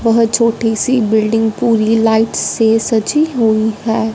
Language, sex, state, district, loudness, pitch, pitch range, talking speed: Hindi, female, Punjab, Fazilka, -13 LUFS, 225 Hz, 220-230 Hz, 145 wpm